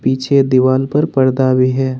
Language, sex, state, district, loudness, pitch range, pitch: Hindi, male, Jharkhand, Ranchi, -13 LUFS, 130-135 Hz, 130 Hz